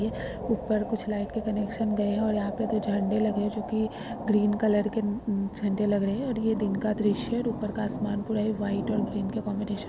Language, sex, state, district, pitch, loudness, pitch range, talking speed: Hindi, female, Bihar, Madhepura, 215 Hz, -28 LUFS, 205-220 Hz, 255 wpm